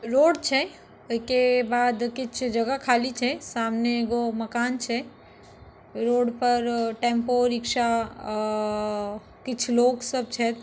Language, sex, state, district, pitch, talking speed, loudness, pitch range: Maithili, female, Bihar, Darbhanga, 240 Hz, 120 wpm, -25 LUFS, 230-250 Hz